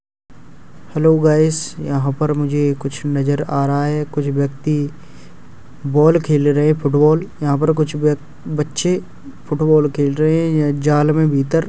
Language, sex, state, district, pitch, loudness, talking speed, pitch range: Hindi, male, Uttar Pradesh, Hamirpur, 150 Hz, -17 LUFS, 155 wpm, 140-155 Hz